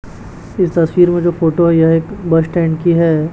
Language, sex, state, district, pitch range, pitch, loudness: Hindi, male, Chhattisgarh, Raipur, 160-175 Hz, 170 Hz, -13 LUFS